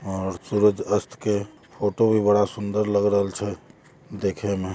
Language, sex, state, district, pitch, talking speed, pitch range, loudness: Hindi, male, Jharkhand, Jamtara, 105 Hz, 165 wpm, 100-105 Hz, -23 LUFS